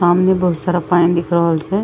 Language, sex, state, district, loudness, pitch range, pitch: Maithili, female, Bihar, Madhepura, -15 LUFS, 170-180 Hz, 175 Hz